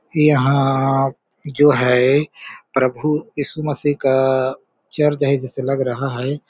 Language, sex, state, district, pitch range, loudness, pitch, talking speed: Hindi, male, Chhattisgarh, Balrampur, 130-145 Hz, -18 LUFS, 135 Hz, 120 wpm